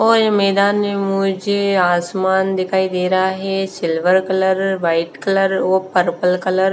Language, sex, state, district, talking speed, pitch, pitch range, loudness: Hindi, female, Bihar, West Champaran, 150 wpm, 190 Hz, 185-195 Hz, -17 LUFS